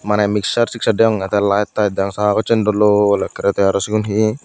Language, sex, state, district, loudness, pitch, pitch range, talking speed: Chakma, male, Tripura, Dhalai, -16 LUFS, 105 Hz, 100-110 Hz, 215 wpm